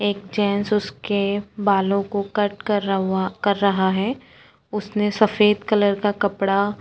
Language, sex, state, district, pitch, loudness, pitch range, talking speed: Hindi, female, Uttarakhand, Tehri Garhwal, 205 Hz, -21 LUFS, 200-210 Hz, 160 wpm